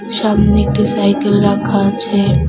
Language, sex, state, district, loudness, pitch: Bengali, female, West Bengal, Cooch Behar, -13 LUFS, 200 Hz